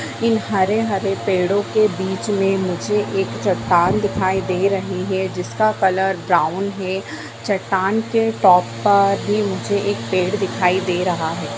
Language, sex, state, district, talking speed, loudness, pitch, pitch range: Hindi, female, Bihar, Begusarai, 150 wpm, -19 LUFS, 195 Hz, 185-205 Hz